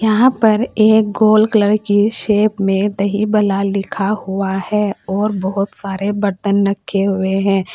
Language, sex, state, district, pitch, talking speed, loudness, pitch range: Hindi, female, Uttar Pradesh, Saharanpur, 205 Hz, 155 wpm, -15 LUFS, 195-215 Hz